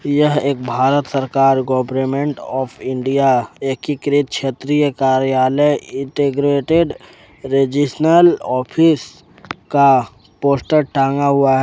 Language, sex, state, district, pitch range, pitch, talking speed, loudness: Hindi, male, Jharkhand, Ranchi, 130-145 Hz, 140 Hz, 75 wpm, -16 LUFS